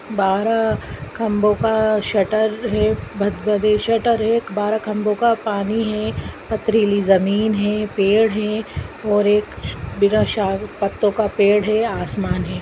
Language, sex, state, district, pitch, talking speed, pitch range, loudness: Hindi, female, Jharkhand, Jamtara, 210 Hz, 135 wpm, 205-220 Hz, -19 LUFS